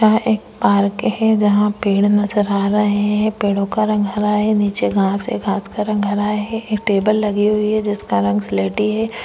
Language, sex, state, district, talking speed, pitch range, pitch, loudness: Hindi, female, Maharashtra, Chandrapur, 240 wpm, 200-215 Hz, 210 Hz, -17 LUFS